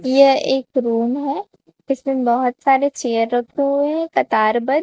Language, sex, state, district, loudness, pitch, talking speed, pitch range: Hindi, female, Chhattisgarh, Raipur, -18 LUFS, 265 Hz, 160 wpm, 240-280 Hz